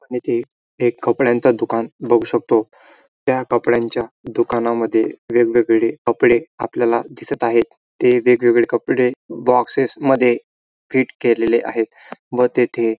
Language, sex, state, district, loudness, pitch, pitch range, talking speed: Marathi, male, Maharashtra, Dhule, -18 LUFS, 120 Hz, 115-125 Hz, 115 wpm